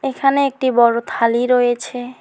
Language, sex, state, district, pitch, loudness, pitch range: Bengali, female, West Bengal, Alipurduar, 250 Hz, -16 LUFS, 240-270 Hz